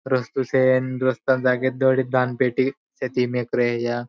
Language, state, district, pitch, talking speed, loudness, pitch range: Bhili, Maharashtra, Dhule, 130 Hz, 145 wpm, -22 LUFS, 125-130 Hz